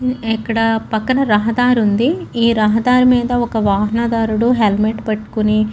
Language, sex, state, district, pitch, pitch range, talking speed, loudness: Telugu, female, Andhra Pradesh, Chittoor, 225 Hz, 215-245 Hz, 125 wpm, -15 LUFS